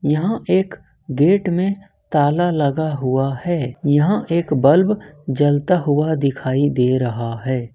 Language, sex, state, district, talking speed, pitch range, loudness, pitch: Hindi, male, Jharkhand, Ranchi, 130 wpm, 135-175 Hz, -18 LUFS, 145 Hz